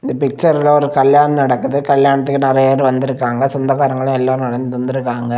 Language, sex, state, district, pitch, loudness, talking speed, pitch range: Tamil, male, Tamil Nadu, Kanyakumari, 135 Hz, -14 LUFS, 135 wpm, 130-140 Hz